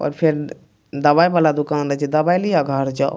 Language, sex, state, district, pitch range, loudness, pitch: Maithili, male, Bihar, Madhepura, 140-160 Hz, -18 LUFS, 150 Hz